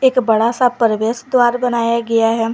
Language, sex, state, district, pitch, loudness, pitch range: Hindi, female, Jharkhand, Garhwa, 235 Hz, -15 LUFS, 225-250 Hz